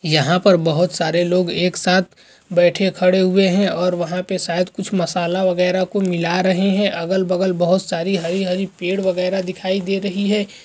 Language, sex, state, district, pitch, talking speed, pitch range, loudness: Hindi, male, Uttar Pradesh, Gorakhpur, 185 Hz, 190 wpm, 175-190 Hz, -18 LUFS